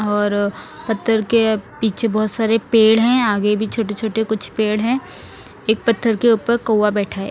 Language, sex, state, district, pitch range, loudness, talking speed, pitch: Hindi, female, Punjab, Fazilka, 210-230 Hz, -17 LUFS, 180 wpm, 220 Hz